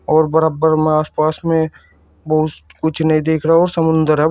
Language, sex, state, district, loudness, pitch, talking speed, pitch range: Hindi, male, Uttar Pradesh, Shamli, -16 LUFS, 155 Hz, 180 wpm, 155-160 Hz